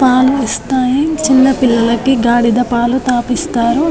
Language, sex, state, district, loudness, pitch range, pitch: Telugu, female, Telangana, Nalgonda, -12 LUFS, 240-265 Hz, 255 Hz